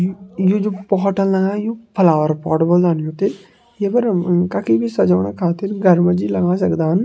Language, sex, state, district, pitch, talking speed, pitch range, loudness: Kumaoni, male, Uttarakhand, Tehri Garhwal, 180 Hz, 185 wpm, 170-200 Hz, -17 LUFS